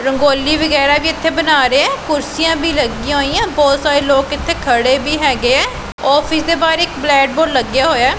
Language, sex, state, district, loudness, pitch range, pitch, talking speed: Punjabi, female, Punjab, Pathankot, -13 LUFS, 275-320 Hz, 290 Hz, 185 wpm